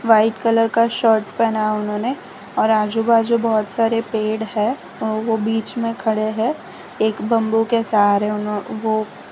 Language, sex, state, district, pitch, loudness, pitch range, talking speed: Hindi, female, Gujarat, Valsad, 220 Hz, -19 LUFS, 215-230 Hz, 155 wpm